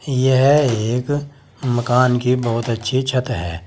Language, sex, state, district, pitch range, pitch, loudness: Hindi, male, Uttar Pradesh, Saharanpur, 120-135 Hz, 125 Hz, -18 LUFS